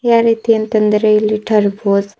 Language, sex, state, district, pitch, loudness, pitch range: Kannada, female, Karnataka, Bidar, 215 Hz, -14 LUFS, 210-225 Hz